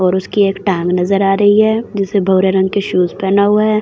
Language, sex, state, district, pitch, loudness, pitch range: Hindi, female, Delhi, New Delhi, 195 Hz, -13 LUFS, 190-205 Hz